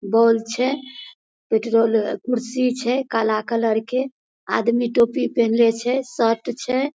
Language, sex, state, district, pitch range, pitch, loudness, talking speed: Maithili, female, Bihar, Madhepura, 225-255 Hz, 235 Hz, -20 LUFS, 120 wpm